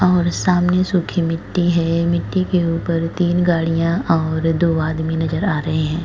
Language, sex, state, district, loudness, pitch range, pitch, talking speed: Hindi, female, Uttar Pradesh, Etah, -18 LUFS, 165-175 Hz, 170 Hz, 180 wpm